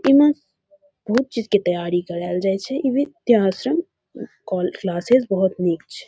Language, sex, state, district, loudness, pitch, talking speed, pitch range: Maithili, female, Bihar, Saharsa, -20 LUFS, 215 Hz, 160 wpm, 180-275 Hz